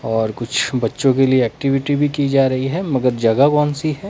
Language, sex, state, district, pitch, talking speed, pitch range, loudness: Hindi, male, Himachal Pradesh, Shimla, 135 Hz, 235 wpm, 125-145 Hz, -17 LUFS